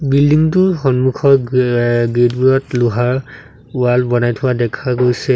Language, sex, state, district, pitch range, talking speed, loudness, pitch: Assamese, male, Assam, Sonitpur, 120-135 Hz, 135 wpm, -14 LUFS, 125 Hz